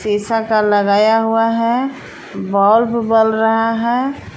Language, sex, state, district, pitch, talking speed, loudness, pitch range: Hindi, female, Jharkhand, Palamu, 225 Hz, 125 wpm, -15 LUFS, 215-230 Hz